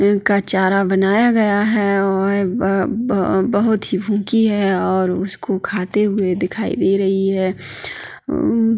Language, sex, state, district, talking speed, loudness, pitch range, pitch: Hindi, female, Uttarakhand, Tehri Garhwal, 135 wpm, -17 LUFS, 190-210 Hz, 200 Hz